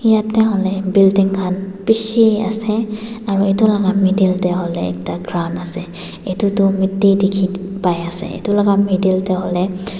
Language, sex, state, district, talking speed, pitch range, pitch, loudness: Nagamese, female, Nagaland, Dimapur, 155 wpm, 185-205 Hz, 195 Hz, -16 LUFS